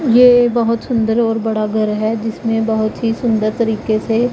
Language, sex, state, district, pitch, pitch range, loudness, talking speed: Hindi, female, Punjab, Pathankot, 225 Hz, 220-235 Hz, -15 LUFS, 195 wpm